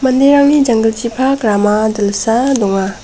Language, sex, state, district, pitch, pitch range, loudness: Garo, female, Meghalaya, West Garo Hills, 225 Hz, 210-265 Hz, -12 LUFS